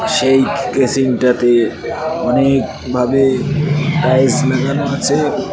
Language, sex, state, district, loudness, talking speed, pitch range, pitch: Bengali, male, West Bengal, Cooch Behar, -14 LUFS, 85 wpm, 125-140 Hz, 135 Hz